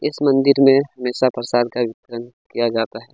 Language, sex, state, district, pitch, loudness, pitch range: Hindi, male, Chhattisgarh, Kabirdham, 125 Hz, -18 LUFS, 120-135 Hz